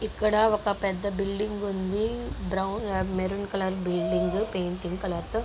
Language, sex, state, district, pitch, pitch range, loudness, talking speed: Telugu, female, Andhra Pradesh, Guntur, 195 Hz, 185-210 Hz, -28 LUFS, 130 wpm